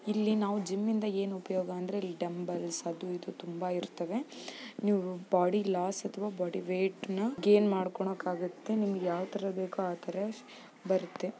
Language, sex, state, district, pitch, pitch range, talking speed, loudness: Kannada, female, Karnataka, Chamarajanagar, 190 Hz, 180-205 Hz, 135 wpm, -33 LUFS